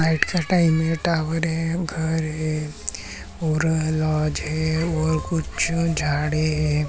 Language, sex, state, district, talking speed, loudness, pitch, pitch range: Marathi, male, Maharashtra, Chandrapur, 130 wpm, -23 LUFS, 160 Hz, 155-165 Hz